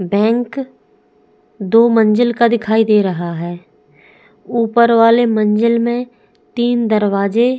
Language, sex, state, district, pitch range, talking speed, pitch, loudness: Hindi, female, Goa, North and South Goa, 210-235 Hz, 120 wpm, 230 Hz, -14 LUFS